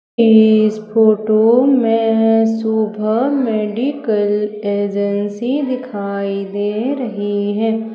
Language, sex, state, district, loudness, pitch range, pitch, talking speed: Hindi, female, Madhya Pradesh, Umaria, -16 LUFS, 205-225 Hz, 220 Hz, 75 wpm